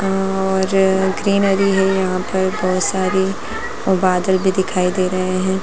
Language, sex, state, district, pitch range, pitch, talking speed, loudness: Hindi, female, Bihar, Lakhisarai, 185-195 Hz, 190 Hz, 160 wpm, -17 LUFS